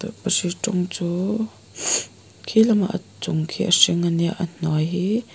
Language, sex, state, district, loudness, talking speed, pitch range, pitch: Mizo, female, Mizoram, Aizawl, -21 LUFS, 155 wpm, 170-205 Hz, 180 Hz